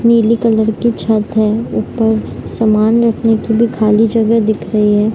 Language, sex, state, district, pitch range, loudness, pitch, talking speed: Hindi, female, Bihar, Madhepura, 215-230 Hz, -13 LUFS, 220 Hz, 175 wpm